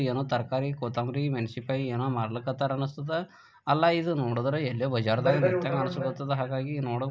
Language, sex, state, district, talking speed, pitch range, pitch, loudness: Kannada, male, Karnataka, Bijapur, 145 wpm, 125-140 Hz, 135 Hz, -29 LUFS